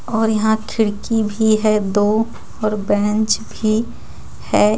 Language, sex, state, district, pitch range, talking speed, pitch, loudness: Hindi, female, Jharkhand, Ranchi, 210-220 Hz, 125 wpm, 215 Hz, -18 LUFS